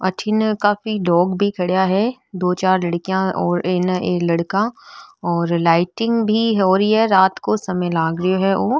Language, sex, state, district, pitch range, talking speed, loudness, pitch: Marwari, female, Rajasthan, Nagaur, 180-215 Hz, 175 wpm, -18 LUFS, 190 Hz